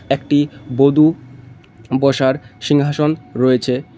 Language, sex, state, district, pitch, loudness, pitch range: Bengali, male, West Bengal, Cooch Behar, 135 Hz, -16 LUFS, 130-145 Hz